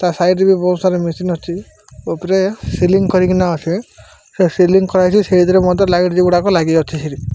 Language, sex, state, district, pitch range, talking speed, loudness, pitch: Odia, male, Odisha, Malkangiri, 175-190 Hz, 170 wpm, -14 LUFS, 180 Hz